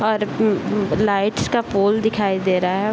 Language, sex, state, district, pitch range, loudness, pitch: Hindi, male, Bihar, Bhagalpur, 195-215 Hz, -19 LUFS, 210 Hz